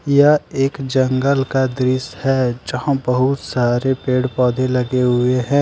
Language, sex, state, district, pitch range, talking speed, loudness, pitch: Hindi, male, Jharkhand, Deoghar, 125-135 Hz, 150 wpm, -17 LUFS, 130 Hz